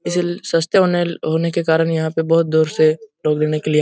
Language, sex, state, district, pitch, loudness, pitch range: Hindi, male, Bihar, Jahanabad, 160 Hz, -17 LUFS, 155-170 Hz